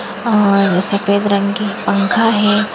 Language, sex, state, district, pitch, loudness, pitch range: Hindi, female, Maharashtra, Nagpur, 205 Hz, -14 LUFS, 200-220 Hz